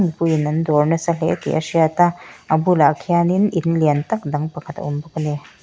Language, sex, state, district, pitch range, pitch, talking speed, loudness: Mizo, female, Mizoram, Aizawl, 150-170 Hz, 160 Hz, 225 wpm, -19 LUFS